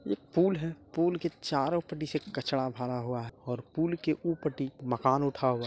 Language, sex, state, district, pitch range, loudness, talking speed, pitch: Hindi, male, Bihar, Jahanabad, 125-165 Hz, -32 LUFS, 170 wpm, 140 Hz